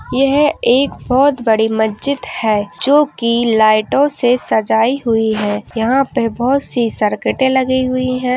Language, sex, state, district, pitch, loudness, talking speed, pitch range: Hindi, female, Uttar Pradesh, Etah, 250 Hz, -15 LUFS, 145 wpm, 220-270 Hz